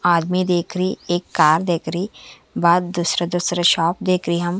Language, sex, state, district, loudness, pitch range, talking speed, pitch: Hindi, female, Haryana, Charkhi Dadri, -19 LUFS, 170-180 Hz, 155 wpm, 175 Hz